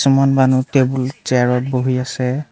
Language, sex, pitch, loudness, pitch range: Assamese, male, 130 Hz, -16 LUFS, 125-135 Hz